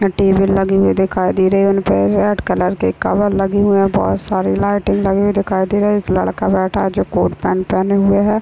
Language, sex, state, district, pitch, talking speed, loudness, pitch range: Hindi, female, Chhattisgarh, Bilaspur, 195 Hz, 240 wpm, -15 LUFS, 190-200 Hz